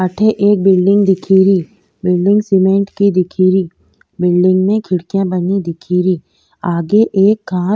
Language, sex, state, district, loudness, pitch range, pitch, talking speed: Rajasthani, female, Rajasthan, Nagaur, -13 LUFS, 180-200 Hz, 190 Hz, 145 wpm